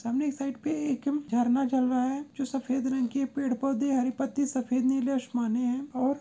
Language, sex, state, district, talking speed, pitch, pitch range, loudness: Hindi, female, Goa, North and South Goa, 210 wpm, 265 Hz, 255-275 Hz, -29 LUFS